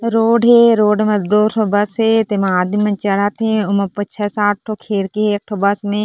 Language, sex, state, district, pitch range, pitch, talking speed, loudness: Chhattisgarhi, female, Chhattisgarh, Korba, 205-215 Hz, 210 Hz, 230 wpm, -15 LUFS